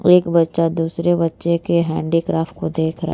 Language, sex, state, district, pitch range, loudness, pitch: Hindi, female, Bihar, Vaishali, 160-170 Hz, -18 LUFS, 165 Hz